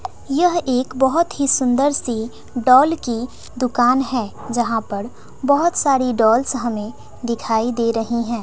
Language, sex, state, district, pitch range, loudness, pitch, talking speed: Hindi, female, Bihar, West Champaran, 235-270 Hz, -18 LUFS, 245 Hz, 140 wpm